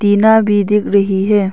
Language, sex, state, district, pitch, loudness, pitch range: Hindi, female, Arunachal Pradesh, Longding, 205 Hz, -12 LUFS, 200-210 Hz